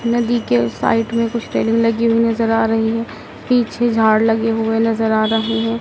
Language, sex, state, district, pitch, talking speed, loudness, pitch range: Hindi, female, Madhya Pradesh, Dhar, 225 Hz, 215 wpm, -17 LUFS, 225-230 Hz